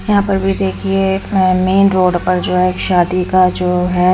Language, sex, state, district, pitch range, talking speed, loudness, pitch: Hindi, female, Haryana, Rohtak, 180-195 Hz, 190 wpm, -14 LUFS, 185 Hz